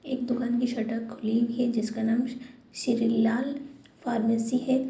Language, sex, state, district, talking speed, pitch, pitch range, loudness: Hindi, female, Bihar, Sitamarhi, 145 wpm, 240 Hz, 230-250 Hz, -28 LUFS